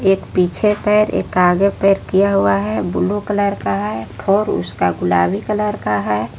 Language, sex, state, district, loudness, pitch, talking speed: Hindi, female, Jharkhand, Palamu, -17 LUFS, 180 Hz, 180 wpm